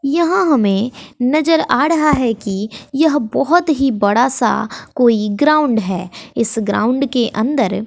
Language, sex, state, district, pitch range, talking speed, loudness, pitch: Hindi, female, Bihar, West Champaran, 220-295 Hz, 145 wpm, -15 LUFS, 250 Hz